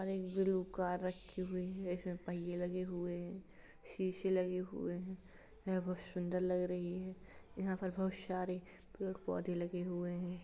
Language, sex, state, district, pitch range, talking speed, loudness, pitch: Hindi, female, Uttar Pradesh, Hamirpur, 180-185 Hz, 185 wpm, -41 LUFS, 185 Hz